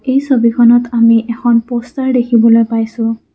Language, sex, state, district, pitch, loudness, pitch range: Assamese, female, Assam, Kamrup Metropolitan, 235 Hz, -12 LUFS, 230-245 Hz